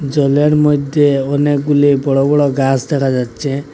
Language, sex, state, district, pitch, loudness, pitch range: Bengali, male, Assam, Hailakandi, 140 Hz, -14 LUFS, 135-145 Hz